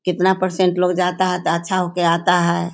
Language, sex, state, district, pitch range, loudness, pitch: Hindi, female, Bihar, Sitamarhi, 175-185 Hz, -18 LUFS, 180 Hz